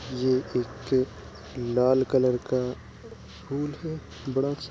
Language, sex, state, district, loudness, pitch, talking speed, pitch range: Hindi, male, Uttar Pradesh, Jalaun, -27 LUFS, 130 Hz, 125 wpm, 125-135 Hz